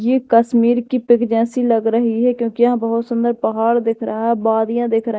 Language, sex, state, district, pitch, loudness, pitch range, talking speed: Hindi, female, Madhya Pradesh, Dhar, 235 Hz, -16 LUFS, 230-240 Hz, 210 wpm